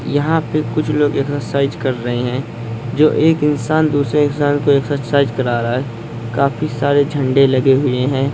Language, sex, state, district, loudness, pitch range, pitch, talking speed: Hindi, male, Chhattisgarh, Kabirdham, -16 LUFS, 130-145 Hz, 140 Hz, 165 wpm